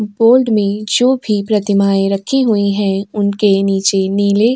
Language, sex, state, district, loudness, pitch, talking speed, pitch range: Hindi, female, Uttar Pradesh, Jyotiba Phule Nagar, -14 LUFS, 205 Hz, 160 wpm, 200-220 Hz